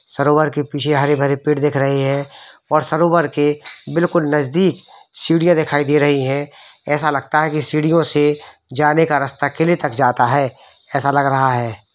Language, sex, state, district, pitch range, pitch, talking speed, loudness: Hindi, male, Uttar Pradesh, Varanasi, 140-155 Hz, 145 Hz, 175 wpm, -17 LUFS